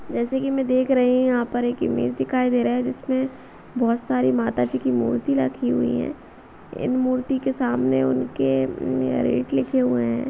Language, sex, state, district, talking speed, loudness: Bhojpuri, female, Uttar Pradesh, Deoria, 185 wpm, -22 LUFS